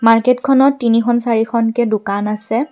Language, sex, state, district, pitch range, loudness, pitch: Assamese, female, Assam, Kamrup Metropolitan, 225-240 Hz, -15 LUFS, 230 Hz